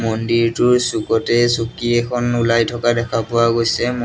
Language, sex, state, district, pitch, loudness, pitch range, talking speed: Assamese, male, Assam, Sonitpur, 115 Hz, -17 LUFS, 115-120 Hz, 150 wpm